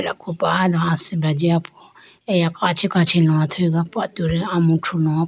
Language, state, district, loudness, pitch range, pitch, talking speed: Idu Mishmi, Arunachal Pradesh, Lower Dibang Valley, -19 LUFS, 165-180 Hz, 170 Hz, 145 wpm